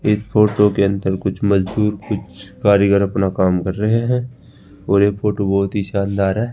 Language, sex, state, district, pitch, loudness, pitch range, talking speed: Hindi, male, Rajasthan, Jaipur, 100 Hz, -17 LUFS, 95-105 Hz, 185 wpm